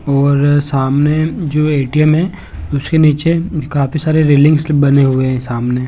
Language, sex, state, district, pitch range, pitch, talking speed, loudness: Hindi, male, Chhattisgarh, Bilaspur, 135-155 Hz, 145 Hz, 155 wpm, -13 LUFS